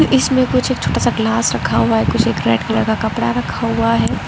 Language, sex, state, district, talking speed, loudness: Hindi, female, Arunachal Pradesh, Lower Dibang Valley, 250 wpm, -16 LUFS